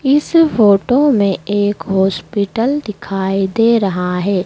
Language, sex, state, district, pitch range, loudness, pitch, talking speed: Hindi, female, Madhya Pradesh, Dhar, 190-235 Hz, -14 LUFS, 205 Hz, 120 wpm